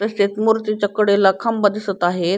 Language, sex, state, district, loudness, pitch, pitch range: Marathi, female, Maharashtra, Pune, -18 LUFS, 205 Hz, 195-215 Hz